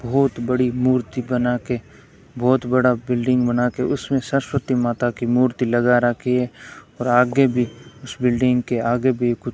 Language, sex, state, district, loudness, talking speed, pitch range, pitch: Hindi, male, Rajasthan, Bikaner, -20 LUFS, 175 wpm, 120-130 Hz, 125 Hz